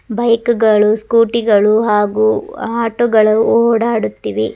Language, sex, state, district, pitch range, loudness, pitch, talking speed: Kannada, male, Karnataka, Dharwad, 210-230 Hz, -13 LUFS, 220 Hz, 105 wpm